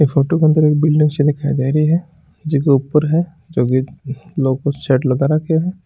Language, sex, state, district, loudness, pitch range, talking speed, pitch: Marwari, male, Rajasthan, Churu, -16 LUFS, 140-160 Hz, 185 wpm, 150 Hz